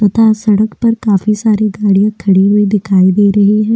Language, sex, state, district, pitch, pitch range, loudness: Hindi, female, Delhi, New Delhi, 210 Hz, 200-215 Hz, -11 LUFS